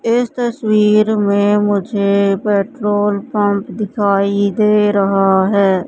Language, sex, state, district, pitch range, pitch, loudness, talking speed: Hindi, female, Madhya Pradesh, Katni, 200-210 Hz, 205 Hz, -14 LUFS, 100 wpm